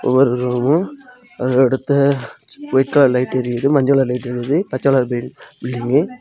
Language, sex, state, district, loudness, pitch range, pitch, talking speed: Tamil, male, Tamil Nadu, Kanyakumari, -17 LUFS, 125-140 Hz, 130 Hz, 145 wpm